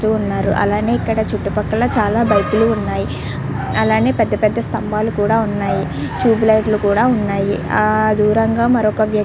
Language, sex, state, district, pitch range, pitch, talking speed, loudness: Telugu, female, Andhra Pradesh, Chittoor, 190-220 Hz, 210 Hz, 130 wpm, -16 LUFS